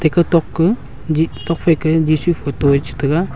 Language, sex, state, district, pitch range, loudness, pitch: Wancho, male, Arunachal Pradesh, Longding, 140-170 Hz, -16 LUFS, 155 Hz